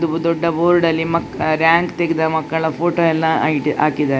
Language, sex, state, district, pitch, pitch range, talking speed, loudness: Kannada, female, Karnataka, Dakshina Kannada, 165 Hz, 160-170 Hz, 155 wpm, -17 LUFS